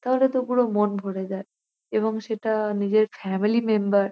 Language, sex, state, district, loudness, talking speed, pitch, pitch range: Bengali, female, West Bengal, North 24 Parganas, -24 LUFS, 175 wpm, 215 Hz, 200-220 Hz